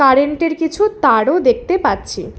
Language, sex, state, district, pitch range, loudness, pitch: Bengali, female, West Bengal, Alipurduar, 280-415 Hz, -15 LUFS, 325 Hz